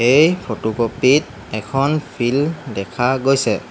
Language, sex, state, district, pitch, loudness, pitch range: Assamese, male, Assam, Hailakandi, 125 Hz, -18 LUFS, 110-140 Hz